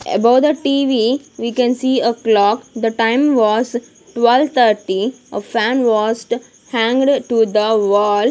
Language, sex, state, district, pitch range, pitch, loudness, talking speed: English, female, Punjab, Kapurthala, 220-255 Hz, 235 Hz, -15 LUFS, 145 wpm